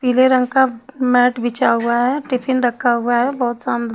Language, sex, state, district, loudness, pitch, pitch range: Hindi, female, Chhattisgarh, Raipur, -17 LUFS, 250 Hz, 240-260 Hz